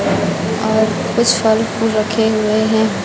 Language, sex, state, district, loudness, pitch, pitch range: Hindi, female, Chhattisgarh, Raipur, -15 LUFS, 220 Hz, 215-220 Hz